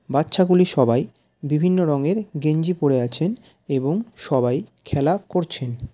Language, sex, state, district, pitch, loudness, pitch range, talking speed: Bengali, male, West Bengal, Jalpaiguri, 150 Hz, -21 LUFS, 135-180 Hz, 120 wpm